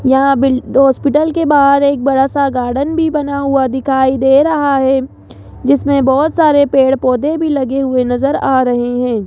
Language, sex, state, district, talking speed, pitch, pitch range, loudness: Hindi, male, Rajasthan, Jaipur, 175 wpm, 275 Hz, 265-285 Hz, -12 LUFS